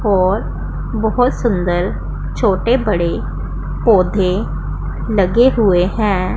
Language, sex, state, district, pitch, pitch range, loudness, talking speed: Hindi, female, Punjab, Pathankot, 200 Hz, 185-225 Hz, -16 LUFS, 85 wpm